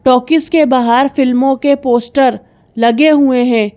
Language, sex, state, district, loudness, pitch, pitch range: Hindi, female, Madhya Pradesh, Bhopal, -11 LUFS, 260 Hz, 240-285 Hz